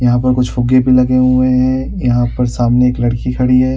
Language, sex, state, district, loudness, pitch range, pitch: Hindi, male, Chhattisgarh, Raigarh, -13 LUFS, 120-130 Hz, 125 Hz